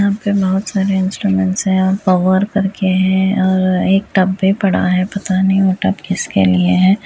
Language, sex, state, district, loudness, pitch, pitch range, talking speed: Hindi, female, Uttar Pradesh, Etah, -15 LUFS, 190 Hz, 185-195 Hz, 195 wpm